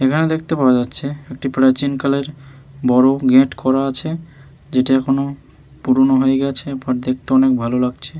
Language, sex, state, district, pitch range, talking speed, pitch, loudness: Bengali, male, West Bengal, Malda, 130-140 Hz, 155 wpm, 135 Hz, -17 LUFS